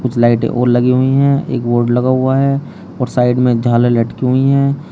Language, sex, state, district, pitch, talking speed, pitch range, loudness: Hindi, male, Uttar Pradesh, Shamli, 125 Hz, 230 wpm, 120-135 Hz, -13 LUFS